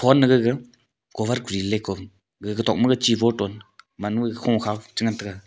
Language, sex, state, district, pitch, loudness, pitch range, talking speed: Wancho, male, Arunachal Pradesh, Longding, 110 Hz, -23 LUFS, 105-120 Hz, 175 wpm